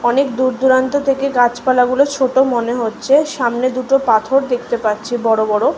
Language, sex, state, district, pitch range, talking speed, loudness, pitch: Bengali, female, West Bengal, Malda, 240-270 Hz, 145 wpm, -15 LUFS, 255 Hz